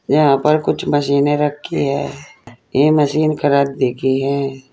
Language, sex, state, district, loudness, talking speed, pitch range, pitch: Hindi, female, Uttar Pradesh, Saharanpur, -16 LUFS, 125 wpm, 135-150 Hz, 140 Hz